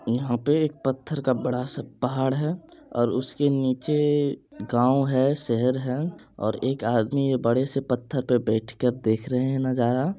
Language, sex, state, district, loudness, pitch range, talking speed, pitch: Maithili, male, Bihar, Supaul, -25 LUFS, 120-140 Hz, 170 wpm, 130 Hz